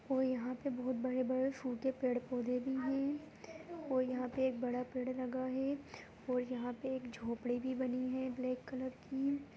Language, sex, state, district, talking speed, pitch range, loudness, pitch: Hindi, female, Chhattisgarh, Kabirdham, 175 wpm, 250-265 Hz, -39 LUFS, 255 Hz